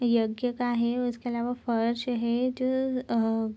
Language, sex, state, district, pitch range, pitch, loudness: Hindi, female, Bihar, Gopalganj, 235-250 Hz, 240 Hz, -28 LUFS